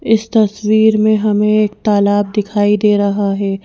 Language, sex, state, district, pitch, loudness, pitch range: Hindi, female, Madhya Pradesh, Bhopal, 210 Hz, -13 LUFS, 205-215 Hz